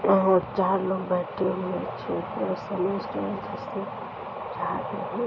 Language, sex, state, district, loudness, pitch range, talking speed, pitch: Hindi, female, Bihar, Araria, -28 LUFS, 185-200 Hz, 55 wpm, 190 Hz